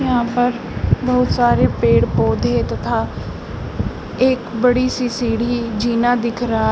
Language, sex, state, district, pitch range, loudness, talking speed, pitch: Hindi, female, Uttar Pradesh, Shamli, 235-250 Hz, -18 LUFS, 135 wpm, 245 Hz